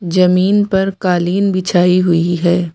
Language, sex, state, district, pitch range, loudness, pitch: Hindi, female, Uttar Pradesh, Lucknow, 175-190 Hz, -13 LUFS, 180 Hz